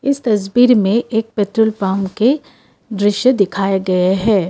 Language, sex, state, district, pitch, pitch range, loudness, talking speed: Hindi, female, Assam, Kamrup Metropolitan, 210 Hz, 195-230 Hz, -15 LUFS, 135 wpm